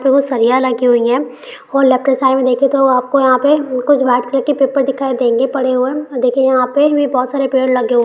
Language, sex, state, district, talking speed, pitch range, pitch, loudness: Hindi, female, Bihar, Bhagalpur, 240 wpm, 255-275 Hz, 260 Hz, -13 LUFS